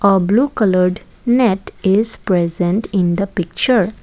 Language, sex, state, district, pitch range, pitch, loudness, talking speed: English, female, Assam, Kamrup Metropolitan, 180-220 Hz, 195 Hz, -15 LUFS, 135 wpm